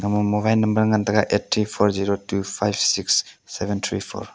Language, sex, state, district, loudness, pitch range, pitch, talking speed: Wancho, male, Arunachal Pradesh, Longding, -21 LUFS, 100-105 Hz, 105 Hz, 205 wpm